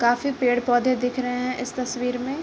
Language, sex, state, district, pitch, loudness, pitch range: Hindi, female, Uttar Pradesh, Varanasi, 250 Hz, -24 LUFS, 245-255 Hz